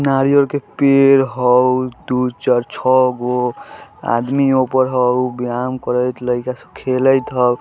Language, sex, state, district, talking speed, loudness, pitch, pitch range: Hindi, male, Bihar, Vaishali, 140 wpm, -16 LUFS, 125 Hz, 125-135 Hz